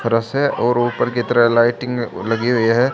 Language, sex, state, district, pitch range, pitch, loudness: Hindi, male, Haryana, Charkhi Dadri, 115-125 Hz, 120 Hz, -17 LUFS